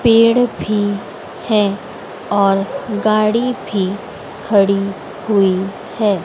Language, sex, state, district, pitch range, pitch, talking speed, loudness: Hindi, female, Madhya Pradesh, Dhar, 195-220 Hz, 205 Hz, 85 wpm, -16 LUFS